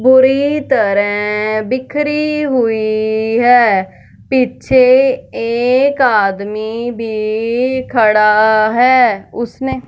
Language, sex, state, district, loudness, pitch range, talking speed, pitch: Hindi, female, Punjab, Fazilka, -13 LUFS, 215-260 Hz, 75 wpm, 235 Hz